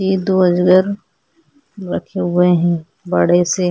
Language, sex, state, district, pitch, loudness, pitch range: Hindi, female, Goa, North and South Goa, 180 Hz, -15 LUFS, 175-185 Hz